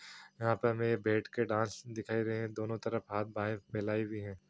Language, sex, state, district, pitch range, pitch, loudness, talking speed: Hindi, male, Bihar, Gaya, 105-115 Hz, 110 Hz, -36 LUFS, 225 wpm